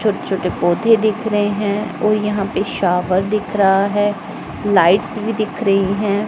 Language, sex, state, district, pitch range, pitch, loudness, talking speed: Hindi, male, Punjab, Pathankot, 195-215 Hz, 205 Hz, -17 LUFS, 170 wpm